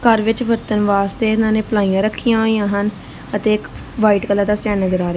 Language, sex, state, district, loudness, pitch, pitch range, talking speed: Punjabi, female, Punjab, Kapurthala, -17 LUFS, 210 Hz, 200-220 Hz, 210 wpm